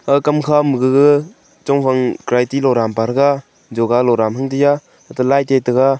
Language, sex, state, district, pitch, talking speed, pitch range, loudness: Wancho, male, Arunachal Pradesh, Longding, 135 Hz, 180 wpm, 125-140 Hz, -15 LUFS